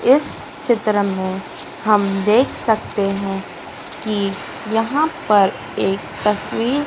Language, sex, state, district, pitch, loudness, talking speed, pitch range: Hindi, female, Madhya Pradesh, Dhar, 210 Hz, -19 LUFS, 105 wpm, 195-240 Hz